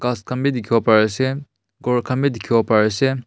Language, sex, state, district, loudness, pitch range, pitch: Nagamese, male, Nagaland, Kohima, -19 LUFS, 110-130 Hz, 125 Hz